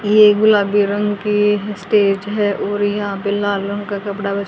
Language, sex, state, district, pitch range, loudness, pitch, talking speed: Hindi, female, Haryana, Rohtak, 200-210 Hz, -16 LUFS, 205 Hz, 185 wpm